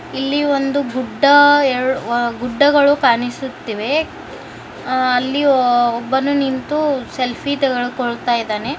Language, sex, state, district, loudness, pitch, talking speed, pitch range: Kannada, male, Karnataka, Bijapur, -16 LUFS, 260 Hz, 75 wpm, 245-285 Hz